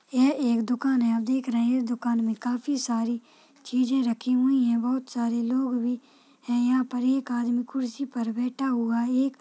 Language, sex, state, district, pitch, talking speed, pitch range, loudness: Hindi, female, Bihar, Saharsa, 250 Hz, 210 wpm, 240-265 Hz, -26 LUFS